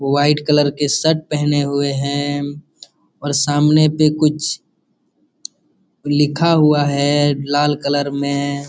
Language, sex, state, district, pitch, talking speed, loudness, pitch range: Hindi, male, Jharkhand, Jamtara, 145 Hz, 125 wpm, -16 LUFS, 140-150 Hz